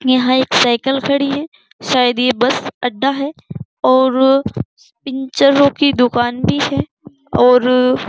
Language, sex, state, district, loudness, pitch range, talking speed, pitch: Hindi, female, Uttar Pradesh, Jyotiba Phule Nagar, -14 LUFS, 250-275 Hz, 135 wpm, 260 Hz